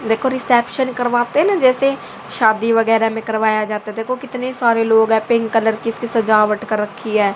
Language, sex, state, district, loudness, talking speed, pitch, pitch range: Hindi, female, Haryana, Rohtak, -17 LUFS, 195 wpm, 225 Hz, 220-250 Hz